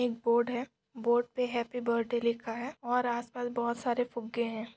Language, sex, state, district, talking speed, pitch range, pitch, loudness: Hindi, female, Maharashtra, Dhule, 190 wpm, 235-245 Hz, 240 Hz, -32 LUFS